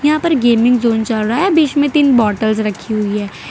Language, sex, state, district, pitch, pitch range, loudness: Hindi, female, Gujarat, Valsad, 235 Hz, 215-290 Hz, -14 LUFS